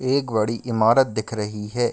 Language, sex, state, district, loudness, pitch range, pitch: Hindi, male, Bihar, Kishanganj, -22 LUFS, 110-125 Hz, 115 Hz